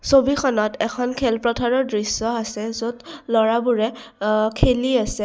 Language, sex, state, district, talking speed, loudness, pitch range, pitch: Assamese, female, Assam, Kamrup Metropolitan, 125 wpm, -21 LUFS, 220-250 Hz, 230 Hz